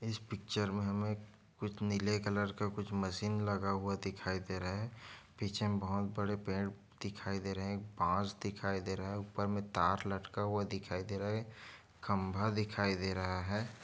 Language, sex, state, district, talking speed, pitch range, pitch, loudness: Hindi, male, Chhattisgarh, Kabirdham, 180 wpm, 95-105 Hz, 100 Hz, -38 LUFS